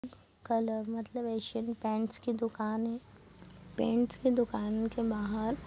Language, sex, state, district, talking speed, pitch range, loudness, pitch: Hindi, female, Jharkhand, Jamtara, 125 wpm, 220-240 Hz, -33 LUFS, 230 Hz